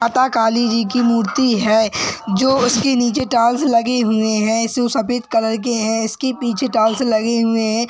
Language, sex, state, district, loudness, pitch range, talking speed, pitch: Hindi, male, Uttar Pradesh, Gorakhpur, -16 LUFS, 225-245 Hz, 180 wpm, 230 Hz